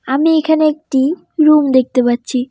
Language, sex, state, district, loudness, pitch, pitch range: Bengali, female, West Bengal, Cooch Behar, -13 LUFS, 275 Hz, 260-310 Hz